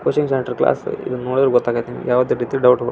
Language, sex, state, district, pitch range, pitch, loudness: Kannada, male, Karnataka, Belgaum, 125-130 Hz, 125 Hz, -18 LUFS